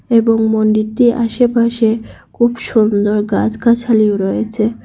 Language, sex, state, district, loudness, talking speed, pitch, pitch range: Bengali, female, Assam, Hailakandi, -14 LUFS, 85 wpm, 225 Hz, 215-235 Hz